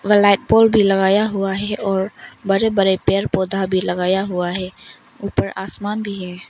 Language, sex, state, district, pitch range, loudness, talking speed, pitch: Hindi, female, Arunachal Pradesh, Longding, 190-205 Hz, -18 LUFS, 175 wpm, 195 Hz